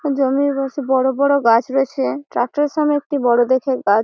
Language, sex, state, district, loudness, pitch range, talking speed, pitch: Bengali, female, West Bengal, Malda, -17 LUFS, 245-280 Hz, 205 wpm, 270 Hz